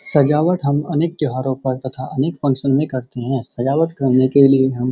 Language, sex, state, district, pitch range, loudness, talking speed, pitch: Hindi, male, Uttar Pradesh, Muzaffarnagar, 130-150 Hz, -17 LUFS, 205 wpm, 135 Hz